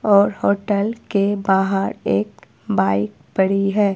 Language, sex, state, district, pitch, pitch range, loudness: Hindi, female, Himachal Pradesh, Shimla, 200 Hz, 190-205 Hz, -19 LUFS